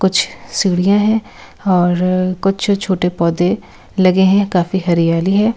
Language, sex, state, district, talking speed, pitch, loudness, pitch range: Hindi, female, Delhi, New Delhi, 130 wpm, 185 Hz, -15 LUFS, 180-200 Hz